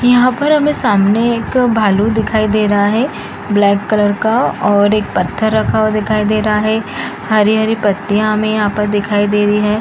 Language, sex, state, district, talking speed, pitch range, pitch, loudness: Hindi, female, Bihar, East Champaran, 190 wpm, 205-220 Hz, 215 Hz, -13 LUFS